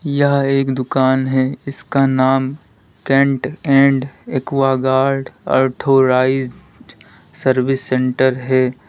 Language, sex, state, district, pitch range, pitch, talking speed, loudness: Hindi, male, Uttar Pradesh, Lalitpur, 130-135 Hz, 130 Hz, 90 wpm, -16 LUFS